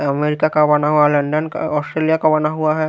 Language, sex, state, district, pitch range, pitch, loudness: Hindi, male, Haryana, Rohtak, 150-155 Hz, 150 Hz, -16 LUFS